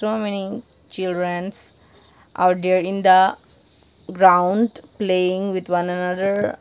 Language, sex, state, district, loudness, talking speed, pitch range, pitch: English, female, Nagaland, Dimapur, -19 LUFS, 110 wpm, 180-195 Hz, 185 Hz